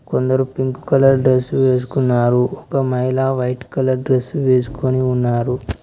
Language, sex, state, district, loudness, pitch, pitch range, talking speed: Telugu, male, Telangana, Mahabubabad, -17 LUFS, 130 Hz, 125-130 Hz, 125 wpm